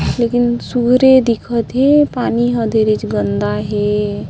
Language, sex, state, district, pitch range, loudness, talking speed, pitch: Chhattisgarhi, female, Chhattisgarh, Sarguja, 210-245 Hz, -14 LUFS, 125 wpm, 235 Hz